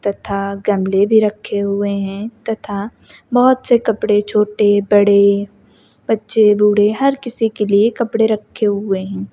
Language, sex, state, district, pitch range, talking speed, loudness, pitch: Hindi, female, Uttar Pradesh, Lucknow, 200-220 Hz, 140 wpm, -15 LUFS, 210 Hz